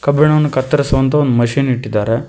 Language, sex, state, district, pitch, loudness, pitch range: Kannada, male, Karnataka, Koppal, 135 Hz, -14 LUFS, 125-145 Hz